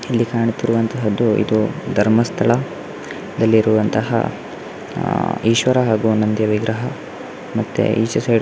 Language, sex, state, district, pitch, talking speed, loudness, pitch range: Kannada, male, Karnataka, Dakshina Kannada, 110 Hz, 100 wpm, -18 LUFS, 110-115 Hz